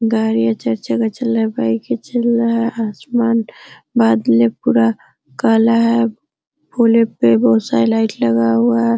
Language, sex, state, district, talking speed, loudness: Hindi, female, Bihar, Araria, 155 wpm, -15 LUFS